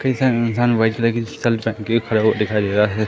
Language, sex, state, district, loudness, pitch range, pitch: Hindi, male, Madhya Pradesh, Katni, -19 LUFS, 110-120 Hz, 115 Hz